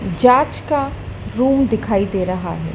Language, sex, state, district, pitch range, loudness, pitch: Hindi, male, Madhya Pradesh, Dhar, 185-260 Hz, -17 LUFS, 220 Hz